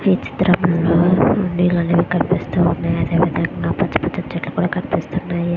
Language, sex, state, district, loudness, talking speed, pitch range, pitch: Telugu, female, Andhra Pradesh, Visakhapatnam, -18 LUFS, 150 wpm, 170-180 Hz, 175 Hz